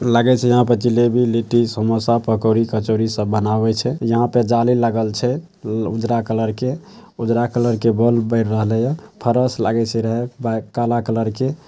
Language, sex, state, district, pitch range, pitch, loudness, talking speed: Maithili, male, Bihar, Saharsa, 110-120 Hz, 115 Hz, -18 LUFS, 185 wpm